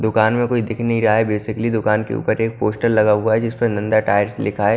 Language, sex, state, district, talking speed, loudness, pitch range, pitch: Hindi, male, Punjab, Kapurthala, 265 wpm, -18 LUFS, 105-115 Hz, 110 Hz